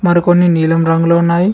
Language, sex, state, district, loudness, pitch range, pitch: Telugu, male, Telangana, Mahabubabad, -12 LUFS, 165-175 Hz, 170 Hz